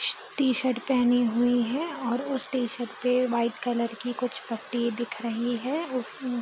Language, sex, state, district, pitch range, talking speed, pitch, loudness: Hindi, female, Bihar, East Champaran, 235-260 Hz, 175 wpm, 245 Hz, -28 LUFS